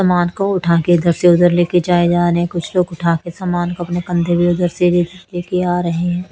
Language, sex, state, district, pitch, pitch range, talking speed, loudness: Hindi, female, Chhattisgarh, Raipur, 175 Hz, 175-180 Hz, 265 wpm, -16 LUFS